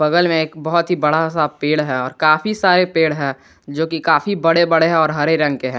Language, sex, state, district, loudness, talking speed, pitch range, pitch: Hindi, male, Jharkhand, Garhwa, -16 LUFS, 240 wpm, 150-165 Hz, 160 Hz